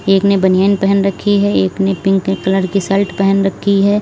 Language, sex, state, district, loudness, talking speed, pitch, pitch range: Hindi, female, Uttar Pradesh, Lalitpur, -14 LUFS, 225 wpm, 195 Hz, 195-200 Hz